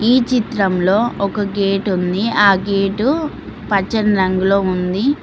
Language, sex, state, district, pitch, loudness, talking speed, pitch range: Telugu, female, Telangana, Mahabubabad, 200 Hz, -16 LUFS, 115 wpm, 195-225 Hz